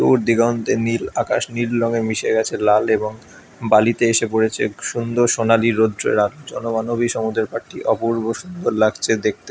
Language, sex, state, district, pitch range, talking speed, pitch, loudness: Bengali, male, West Bengal, Dakshin Dinajpur, 110-115 Hz, 150 wpm, 115 Hz, -19 LUFS